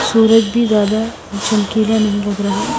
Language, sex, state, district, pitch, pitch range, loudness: Hindi, female, Himachal Pradesh, Shimla, 215 Hz, 205-225 Hz, -15 LUFS